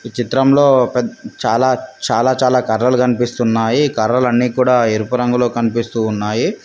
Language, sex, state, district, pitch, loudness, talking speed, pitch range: Telugu, male, Telangana, Mahabubabad, 125 Hz, -15 LUFS, 145 wpm, 115-125 Hz